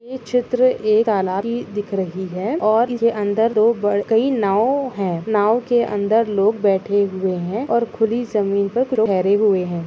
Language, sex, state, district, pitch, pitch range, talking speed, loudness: Hindi, female, Chhattisgarh, Kabirdham, 215 Hz, 200-235 Hz, 175 wpm, -19 LUFS